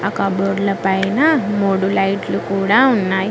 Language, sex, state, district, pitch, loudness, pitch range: Telugu, female, Telangana, Mahabubabad, 195 Hz, -16 LUFS, 195-205 Hz